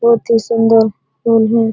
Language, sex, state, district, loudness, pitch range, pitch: Hindi, female, Bihar, Araria, -13 LUFS, 220-230 Hz, 225 Hz